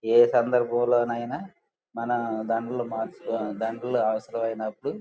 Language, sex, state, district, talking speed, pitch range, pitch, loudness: Telugu, male, Andhra Pradesh, Guntur, 95 wpm, 110-120 Hz, 115 Hz, -26 LUFS